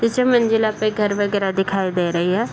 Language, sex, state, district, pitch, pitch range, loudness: Hindi, female, Bihar, Saharsa, 205 Hz, 190-225 Hz, -19 LUFS